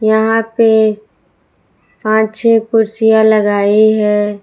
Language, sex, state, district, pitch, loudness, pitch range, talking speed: Hindi, female, Jharkhand, Palamu, 220 Hz, -12 LUFS, 215-220 Hz, 95 wpm